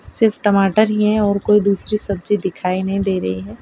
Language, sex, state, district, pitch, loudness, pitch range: Hindi, female, Gujarat, Valsad, 200 Hz, -17 LUFS, 190-210 Hz